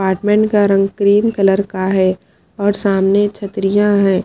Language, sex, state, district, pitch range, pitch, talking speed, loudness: Hindi, female, Haryana, Charkhi Dadri, 195-205 Hz, 200 Hz, 155 wpm, -14 LUFS